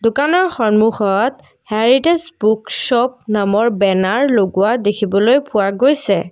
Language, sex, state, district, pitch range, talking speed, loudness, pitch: Assamese, female, Assam, Kamrup Metropolitan, 205-260 Hz, 105 wpm, -15 LUFS, 225 Hz